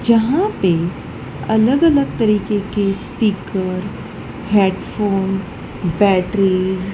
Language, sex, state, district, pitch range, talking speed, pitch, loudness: Hindi, female, Madhya Pradesh, Dhar, 190-220 Hz, 80 wpm, 195 Hz, -17 LUFS